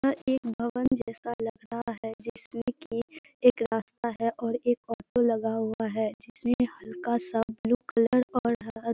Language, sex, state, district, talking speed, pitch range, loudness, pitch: Hindi, female, Bihar, Purnia, 175 wpm, 225-245 Hz, -29 LUFS, 235 Hz